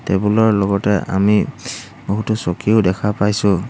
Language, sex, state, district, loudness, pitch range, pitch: Assamese, male, Assam, Hailakandi, -17 LUFS, 100-105 Hz, 105 Hz